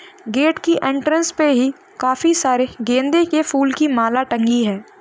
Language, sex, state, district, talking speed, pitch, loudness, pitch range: Hindi, female, Uttar Pradesh, Hamirpur, 165 wpm, 275 Hz, -17 LUFS, 250-320 Hz